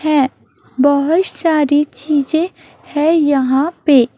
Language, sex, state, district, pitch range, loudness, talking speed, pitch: Hindi, female, Chhattisgarh, Raipur, 280-315 Hz, -15 LUFS, 100 wpm, 295 Hz